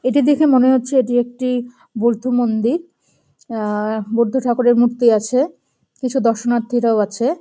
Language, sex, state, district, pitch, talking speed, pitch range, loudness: Bengali, female, West Bengal, Jalpaiguri, 245 Hz, 130 wpm, 230-260 Hz, -17 LUFS